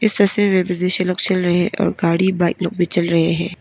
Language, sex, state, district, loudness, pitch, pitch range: Hindi, female, Arunachal Pradesh, Papum Pare, -17 LUFS, 180 Hz, 175-190 Hz